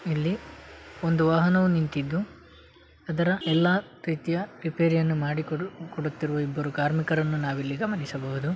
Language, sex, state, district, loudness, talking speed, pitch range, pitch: Kannada, male, Karnataka, Dakshina Kannada, -27 LUFS, 105 wpm, 150-175 Hz, 160 Hz